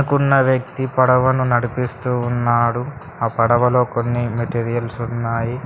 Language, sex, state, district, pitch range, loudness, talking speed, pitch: Telugu, male, Telangana, Mahabubabad, 120-130 Hz, -18 LUFS, 105 wpm, 120 Hz